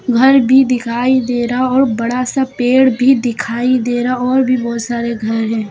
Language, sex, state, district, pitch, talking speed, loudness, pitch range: Hindi, female, Uttar Pradesh, Lucknow, 245 Hz, 200 wpm, -14 LUFS, 235-255 Hz